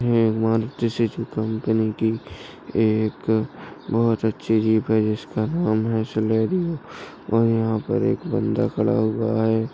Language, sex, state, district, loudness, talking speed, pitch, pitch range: Hindi, male, Chhattisgarh, Bastar, -22 LUFS, 135 wpm, 110 Hz, 110-115 Hz